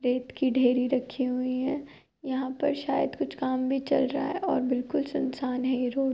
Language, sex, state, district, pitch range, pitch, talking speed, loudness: Hindi, male, Uttar Pradesh, Jyotiba Phule Nagar, 255-275 Hz, 260 Hz, 215 wpm, -28 LUFS